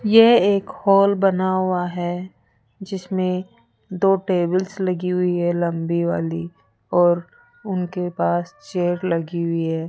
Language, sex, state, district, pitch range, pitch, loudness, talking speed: Hindi, female, Rajasthan, Jaipur, 170-195 Hz, 180 Hz, -20 LUFS, 125 wpm